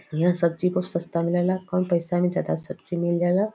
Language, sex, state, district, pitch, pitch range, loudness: Bhojpuri, female, Uttar Pradesh, Varanasi, 175 Hz, 170-185 Hz, -24 LUFS